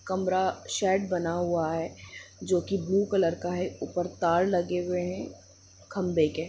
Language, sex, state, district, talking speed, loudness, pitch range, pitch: Hindi, female, Jharkhand, Jamtara, 165 wpm, -28 LUFS, 165-185 Hz, 180 Hz